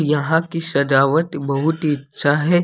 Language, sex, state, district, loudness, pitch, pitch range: Hindi, male, Jharkhand, Deoghar, -18 LUFS, 150 Hz, 140-165 Hz